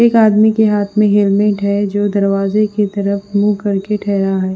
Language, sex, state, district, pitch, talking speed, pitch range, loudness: Hindi, female, Punjab, Fazilka, 205 Hz, 185 wpm, 200-210 Hz, -14 LUFS